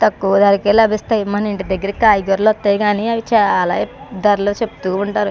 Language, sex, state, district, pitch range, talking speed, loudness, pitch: Telugu, female, Andhra Pradesh, Chittoor, 200-215 Hz, 160 wpm, -16 LUFS, 205 Hz